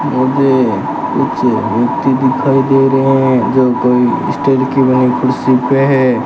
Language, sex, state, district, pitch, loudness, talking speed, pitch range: Hindi, male, Rajasthan, Bikaner, 130 Hz, -12 LUFS, 145 wpm, 125-135 Hz